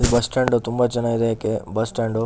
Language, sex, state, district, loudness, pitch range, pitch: Kannada, male, Karnataka, Shimoga, -21 LUFS, 110-120 Hz, 115 Hz